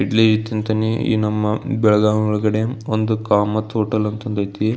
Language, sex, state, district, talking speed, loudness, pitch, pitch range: Kannada, male, Karnataka, Belgaum, 125 wpm, -19 LUFS, 110 Hz, 105-110 Hz